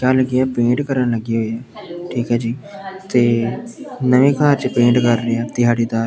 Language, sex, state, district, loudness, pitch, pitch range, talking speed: Punjabi, male, Punjab, Pathankot, -17 LUFS, 125 Hz, 120-140 Hz, 190 wpm